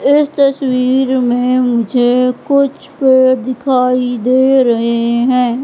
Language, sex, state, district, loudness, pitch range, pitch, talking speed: Hindi, female, Madhya Pradesh, Katni, -12 LUFS, 245-265 Hz, 255 Hz, 105 wpm